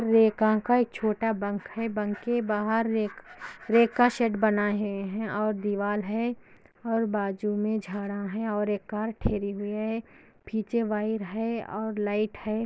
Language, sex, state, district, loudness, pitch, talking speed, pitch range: Hindi, female, Andhra Pradesh, Anantapur, -28 LUFS, 215 Hz, 160 wpm, 205-225 Hz